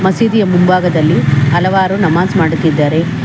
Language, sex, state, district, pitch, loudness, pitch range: Kannada, female, Karnataka, Bangalore, 175 Hz, -11 LUFS, 160-190 Hz